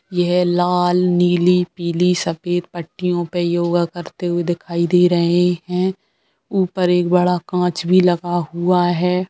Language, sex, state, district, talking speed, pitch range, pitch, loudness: Bhojpuri, female, Bihar, Saran, 140 wpm, 175-180 Hz, 175 Hz, -18 LUFS